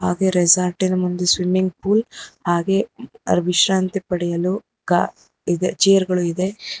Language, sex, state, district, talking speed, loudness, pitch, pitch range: Kannada, female, Karnataka, Bangalore, 115 wpm, -19 LUFS, 185 Hz, 180-195 Hz